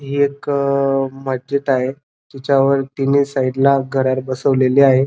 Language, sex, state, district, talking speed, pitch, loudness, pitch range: Marathi, male, Maharashtra, Dhule, 130 wpm, 135 Hz, -17 LUFS, 130-140 Hz